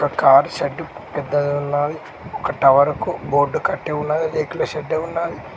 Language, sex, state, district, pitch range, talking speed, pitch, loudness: Telugu, male, Telangana, Mahabubabad, 145-155 Hz, 150 wpm, 145 Hz, -19 LUFS